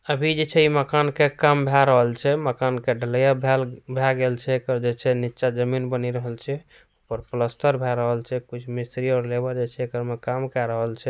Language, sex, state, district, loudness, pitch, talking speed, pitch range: Angika, male, Bihar, Purnia, -23 LUFS, 125 Hz, 210 wpm, 120-135 Hz